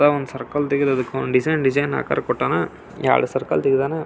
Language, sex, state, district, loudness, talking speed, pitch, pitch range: Kannada, male, Karnataka, Belgaum, -21 LUFS, 60 wpm, 140 Hz, 135-145 Hz